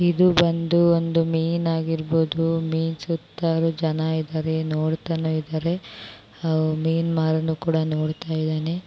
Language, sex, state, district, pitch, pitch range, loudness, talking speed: Kannada, female, Karnataka, Shimoga, 160 Hz, 160-165 Hz, -23 LUFS, 115 wpm